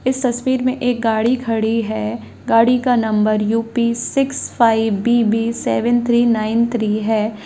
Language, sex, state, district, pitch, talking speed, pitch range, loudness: Hindi, female, Bihar, Madhepura, 230 Hz, 155 wpm, 220-240 Hz, -17 LUFS